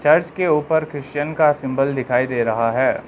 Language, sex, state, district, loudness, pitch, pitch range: Hindi, male, Arunachal Pradesh, Lower Dibang Valley, -19 LUFS, 145 Hz, 130-155 Hz